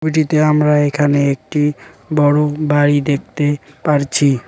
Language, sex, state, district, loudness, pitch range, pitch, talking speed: Bengali, male, West Bengal, Cooch Behar, -15 LUFS, 145-150 Hz, 145 Hz, 105 wpm